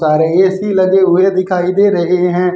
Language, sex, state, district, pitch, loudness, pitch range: Hindi, male, Haryana, Jhajjar, 185 Hz, -12 LUFS, 180-190 Hz